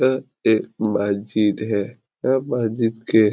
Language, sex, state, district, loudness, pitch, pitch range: Hindi, male, Bihar, Jahanabad, -21 LUFS, 110 Hz, 105-125 Hz